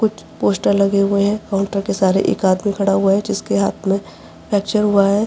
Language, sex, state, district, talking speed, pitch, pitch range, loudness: Hindi, female, Uttar Pradesh, Jyotiba Phule Nagar, 215 wpm, 200 Hz, 195-205 Hz, -17 LUFS